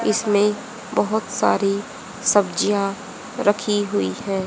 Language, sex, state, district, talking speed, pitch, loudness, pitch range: Hindi, female, Haryana, Charkhi Dadri, 95 wpm, 205 Hz, -21 LUFS, 195-215 Hz